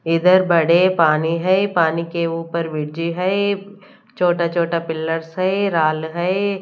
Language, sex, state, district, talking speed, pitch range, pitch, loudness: Hindi, female, Punjab, Kapurthala, 135 wpm, 165-185 Hz, 170 Hz, -18 LUFS